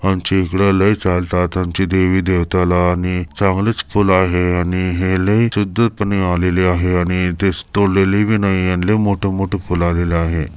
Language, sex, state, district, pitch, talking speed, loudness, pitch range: Marathi, male, Maharashtra, Chandrapur, 95 Hz, 165 wpm, -16 LUFS, 90-100 Hz